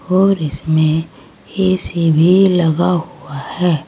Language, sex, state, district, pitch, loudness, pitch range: Hindi, female, Uttar Pradesh, Saharanpur, 175 Hz, -14 LUFS, 160-185 Hz